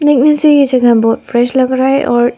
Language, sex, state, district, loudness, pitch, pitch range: Hindi, female, Arunachal Pradesh, Papum Pare, -10 LUFS, 260 Hz, 240-280 Hz